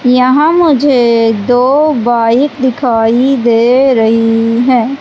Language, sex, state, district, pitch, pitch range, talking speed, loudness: Hindi, male, Madhya Pradesh, Umaria, 250 Hz, 230-270 Hz, 95 wpm, -9 LUFS